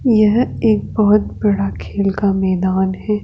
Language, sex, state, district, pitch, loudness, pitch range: Hindi, female, Rajasthan, Jaipur, 205 Hz, -16 LUFS, 195-215 Hz